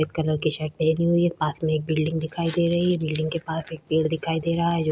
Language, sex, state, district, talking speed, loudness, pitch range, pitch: Hindi, female, Chhattisgarh, Korba, 305 wpm, -24 LUFS, 155-170 Hz, 160 Hz